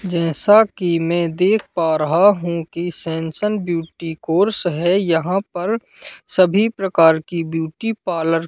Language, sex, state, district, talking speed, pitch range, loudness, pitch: Hindi, male, Madhya Pradesh, Katni, 140 wpm, 165-195 Hz, -18 LUFS, 175 Hz